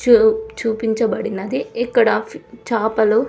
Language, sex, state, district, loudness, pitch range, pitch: Telugu, female, Andhra Pradesh, Sri Satya Sai, -18 LUFS, 220-235 Hz, 225 Hz